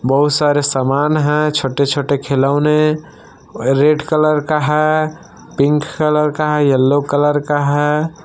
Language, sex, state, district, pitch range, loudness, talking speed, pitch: Hindi, male, Jharkhand, Palamu, 140-155 Hz, -15 LUFS, 130 wpm, 150 Hz